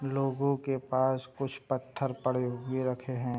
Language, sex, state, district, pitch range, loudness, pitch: Hindi, male, Bihar, Gopalganj, 130-135 Hz, -32 LUFS, 130 Hz